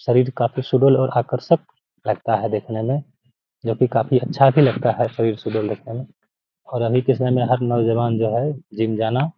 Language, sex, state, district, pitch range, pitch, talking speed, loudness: Hindi, male, Bihar, Gaya, 115-130 Hz, 125 Hz, 205 wpm, -20 LUFS